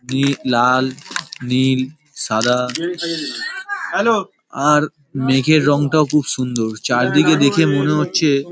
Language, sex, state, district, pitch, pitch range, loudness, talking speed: Bengali, male, West Bengal, Paschim Medinipur, 145 Hz, 130-155 Hz, -17 LUFS, 105 wpm